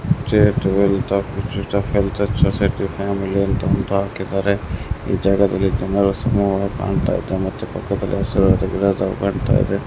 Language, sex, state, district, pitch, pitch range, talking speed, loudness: Kannada, male, Karnataka, Mysore, 100 Hz, 95-100 Hz, 90 wpm, -19 LUFS